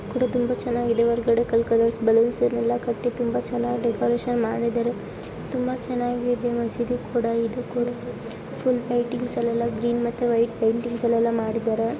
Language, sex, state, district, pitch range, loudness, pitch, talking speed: Kannada, female, Karnataka, Belgaum, 230-245 Hz, -24 LUFS, 235 Hz, 145 wpm